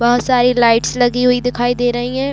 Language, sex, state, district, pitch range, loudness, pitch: Hindi, female, Chhattisgarh, Raigarh, 240-250 Hz, -14 LUFS, 245 Hz